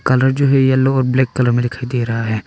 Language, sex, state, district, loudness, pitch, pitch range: Hindi, male, Arunachal Pradesh, Longding, -15 LUFS, 130 Hz, 120-130 Hz